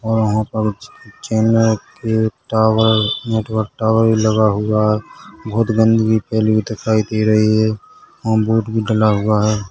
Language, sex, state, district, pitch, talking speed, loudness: Hindi, male, Chhattisgarh, Rajnandgaon, 110 Hz, 175 wpm, -16 LUFS